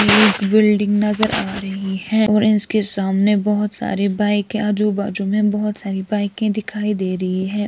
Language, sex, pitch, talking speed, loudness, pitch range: Urdu, female, 210 Hz, 170 wpm, -18 LUFS, 195-210 Hz